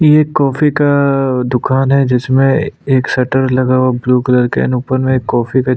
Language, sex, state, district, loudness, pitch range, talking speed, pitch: Hindi, male, Chhattisgarh, Sukma, -13 LUFS, 125-135 Hz, 220 wpm, 130 Hz